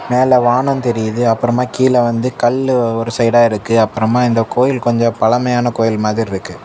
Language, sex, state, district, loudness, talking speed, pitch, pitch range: Tamil, male, Tamil Nadu, Kanyakumari, -14 LUFS, 160 wpm, 120 Hz, 115-125 Hz